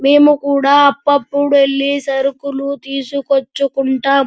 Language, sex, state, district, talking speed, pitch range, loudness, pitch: Telugu, male, Andhra Pradesh, Anantapur, 100 wpm, 275-280 Hz, -14 LUFS, 280 Hz